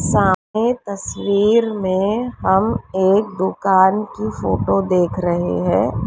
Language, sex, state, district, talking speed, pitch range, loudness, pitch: Hindi, female, Uttar Pradesh, Lalitpur, 110 wpm, 180-210 Hz, -18 LUFS, 190 Hz